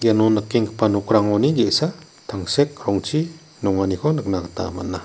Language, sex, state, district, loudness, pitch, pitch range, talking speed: Garo, male, Meghalaya, West Garo Hills, -20 LUFS, 110 Hz, 100-150 Hz, 120 wpm